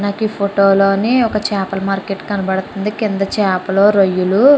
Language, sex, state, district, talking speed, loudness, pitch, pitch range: Telugu, female, Andhra Pradesh, Chittoor, 155 wpm, -15 LUFS, 200 Hz, 195-210 Hz